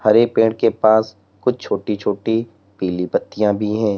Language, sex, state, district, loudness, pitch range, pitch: Hindi, male, Uttar Pradesh, Lalitpur, -18 LUFS, 100-110 Hz, 105 Hz